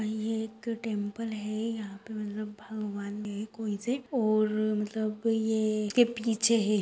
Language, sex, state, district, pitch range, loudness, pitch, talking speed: Hindi, female, Maharashtra, Dhule, 210-225 Hz, -31 LUFS, 215 Hz, 160 wpm